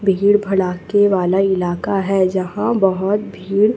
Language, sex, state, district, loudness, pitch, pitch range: Hindi, female, Chhattisgarh, Raipur, -17 LUFS, 195 Hz, 185-205 Hz